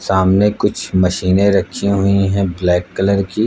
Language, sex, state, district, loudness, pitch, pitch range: Hindi, male, Uttar Pradesh, Lucknow, -15 LUFS, 95 Hz, 95-100 Hz